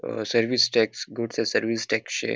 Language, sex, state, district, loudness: Konkani, male, Goa, North and South Goa, -24 LUFS